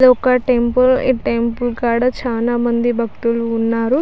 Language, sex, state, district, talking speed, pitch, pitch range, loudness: Telugu, female, Andhra Pradesh, Chittoor, 135 wpm, 240 Hz, 235-250 Hz, -16 LUFS